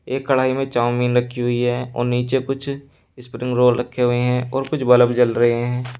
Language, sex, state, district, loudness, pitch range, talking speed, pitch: Hindi, male, Uttar Pradesh, Shamli, -19 LUFS, 120-130 Hz, 210 wpm, 125 Hz